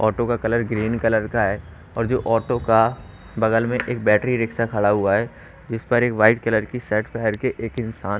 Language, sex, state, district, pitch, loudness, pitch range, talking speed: Hindi, male, Haryana, Rohtak, 115 Hz, -21 LUFS, 105-120 Hz, 225 wpm